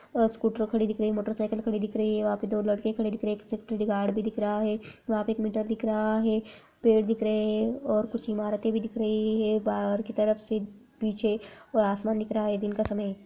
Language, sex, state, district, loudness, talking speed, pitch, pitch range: Hindi, female, Uttar Pradesh, Jyotiba Phule Nagar, -28 LUFS, 270 wpm, 215 Hz, 210-220 Hz